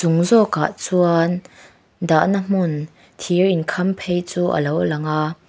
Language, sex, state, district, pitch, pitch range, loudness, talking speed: Mizo, female, Mizoram, Aizawl, 175 Hz, 160-185 Hz, -19 LUFS, 110 wpm